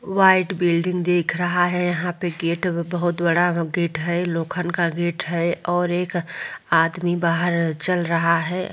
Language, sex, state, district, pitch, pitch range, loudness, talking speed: Hindi, female, Bihar, Vaishali, 175 Hz, 170-180 Hz, -21 LUFS, 150 wpm